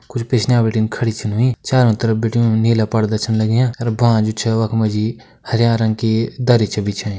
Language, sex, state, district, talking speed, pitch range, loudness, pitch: Kumaoni, male, Uttarakhand, Uttarkashi, 200 wpm, 110-120 Hz, -17 LUFS, 115 Hz